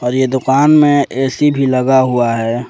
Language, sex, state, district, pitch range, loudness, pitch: Hindi, male, Jharkhand, Ranchi, 125-140 Hz, -12 LUFS, 130 Hz